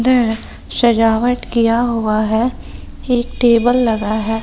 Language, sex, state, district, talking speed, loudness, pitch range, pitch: Hindi, female, Bihar, West Champaran, 120 wpm, -16 LUFS, 225-245 Hz, 230 Hz